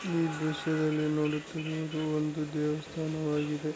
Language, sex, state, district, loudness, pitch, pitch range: Kannada, male, Karnataka, Raichur, -32 LUFS, 155 Hz, 150-160 Hz